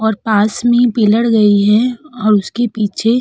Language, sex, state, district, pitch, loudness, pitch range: Hindi, female, Uttar Pradesh, Jalaun, 220 Hz, -13 LUFS, 210-240 Hz